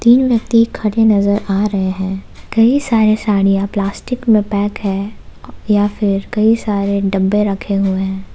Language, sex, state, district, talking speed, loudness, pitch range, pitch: Hindi, female, Jharkhand, Ranchi, 160 wpm, -15 LUFS, 195-220 Hz, 205 Hz